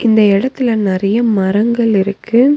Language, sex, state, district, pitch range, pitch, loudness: Tamil, female, Tamil Nadu, Nilgiris, 200-235 Hz, 220 Hz, -13 LUFS